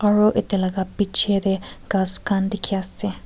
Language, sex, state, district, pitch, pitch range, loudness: Nagamese, female, Nagaland, Kohima, 195 Hz, 190-205 Hz, -19 LUFS